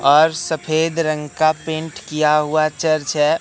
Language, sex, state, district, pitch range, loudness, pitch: Hindi, male, Madhya Pradesh, Katni, 150-160 Hz, -18 LUFS, 155 Hz